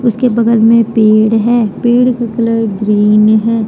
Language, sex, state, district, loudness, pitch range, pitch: Hindi, female, Jharkhand, Deoghar, -10 LUFS, 215-235 Hz, 230 Hz